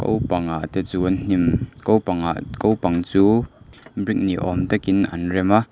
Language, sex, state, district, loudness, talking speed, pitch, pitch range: Mizo, male, Mizoram, Aizawl, -21 LUFS, 190 wpm, 95 Hz, 90-110 Hz